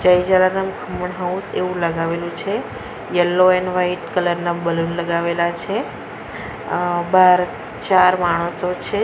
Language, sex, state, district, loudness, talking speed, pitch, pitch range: Gujarati, female, Gujarat, Valsad, -19 LUFS, 135 wpm, 180 Hz, 170-185 Hz